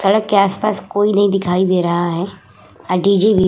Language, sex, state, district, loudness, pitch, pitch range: Hindi, female, Uttar Pradesh, Hamirpur, -16 LUFS, 195 Hz, 180-205 Hz